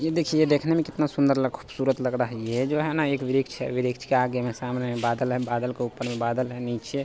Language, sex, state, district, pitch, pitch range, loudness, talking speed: Hindi, male, Bihar, Supaul, 125 Hz, 125-140 Hz, -26 LUFS, 290 wpm